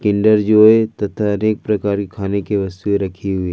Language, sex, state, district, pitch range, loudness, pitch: Hindi, male, Jharkhand, Ranchi, 100-110 Hz, -16 LUFS, 105 Hz